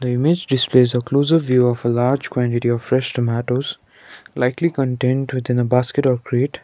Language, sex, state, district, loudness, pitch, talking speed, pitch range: English, male, Sikkim, Gangtok, -18 LUFS, 125 Hz, 170 wpm, 125-135 Hz